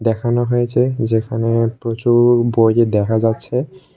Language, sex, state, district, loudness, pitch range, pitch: Bengali, male, Tripura, West Tripura, -16 LUFS, 115-120 Hz, 115 Hz